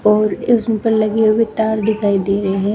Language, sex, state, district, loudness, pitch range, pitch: Hindi, female, Uttar Pradesh, Shamli, -16 LUFS, 205-225 Hz, 215 Hz